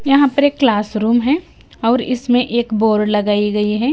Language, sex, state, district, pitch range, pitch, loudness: Hindi, female, Himachal Pradesh, Shimla, 215-265 Hz, 235 Hz, -16 LUFS